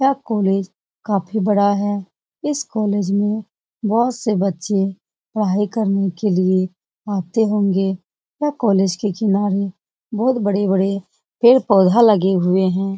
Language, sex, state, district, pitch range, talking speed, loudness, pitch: Hindi, female, Bihar, Lakhisarai, 190-215 Hz, 125 wpm, -18 LUFS, 200 Hz